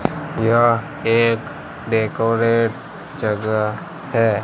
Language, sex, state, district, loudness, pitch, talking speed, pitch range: Hindi, male, Gujarat, Gandhinagar, -19 LUFS, 115 Hz, 65 wpm, 110-120 Hz